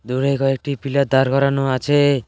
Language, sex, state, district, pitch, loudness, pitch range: Bengali, male, West Bengal, Cooch Behar, 135 Hz, -18 LUFS, 130-140 Hz